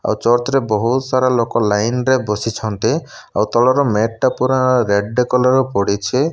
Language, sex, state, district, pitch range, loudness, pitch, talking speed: Odia, male, Odisha, Malkangiri, 105-130 Hz, -16 LUFS, 120 Hz, 150 wpm